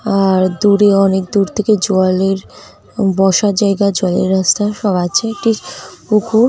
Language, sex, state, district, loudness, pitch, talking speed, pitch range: Bengali, female, West Bengal, North 24 Parganas, -14 LUFS, 195 Hz, 140 wpm, 190-210 Hz